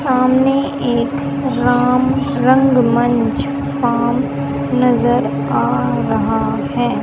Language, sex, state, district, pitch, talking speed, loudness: Hindi, female, Haryana, Charkhi Dadri, 240 Hz, 75 wpm, -15 LUFS